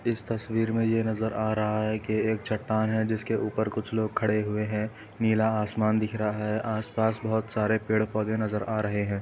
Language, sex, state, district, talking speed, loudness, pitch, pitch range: Hindi, male, Uttar Pradesh, Etah, 210 wpm, -28 LUFS, 110 Hz, 105-110 Hz